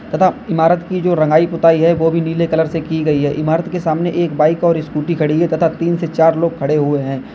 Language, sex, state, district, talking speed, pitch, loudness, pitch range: Hindi, male, Uttar Pradesh, Lalitpur, 260 wpm, 165 Hz, -15 LUFS, 155-170 Hz